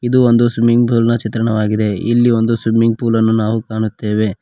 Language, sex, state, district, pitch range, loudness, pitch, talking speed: Kannada, male, Karnataka, Koppal, 110-115 Hz, -14 LUFS, 115 Hz, 190 wpm